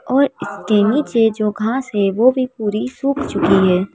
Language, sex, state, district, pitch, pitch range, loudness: Hindi, female, Madhya Pradesh, Bhopal, 225 Hz, 205-260 Hz, -17 LUFS